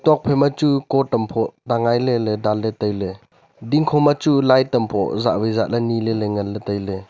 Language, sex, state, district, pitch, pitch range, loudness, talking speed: Wancho, male, Arunachal Pradesh, Longding, 115 Hz, 105-135 Hz, -19 LUFS, 255 wpm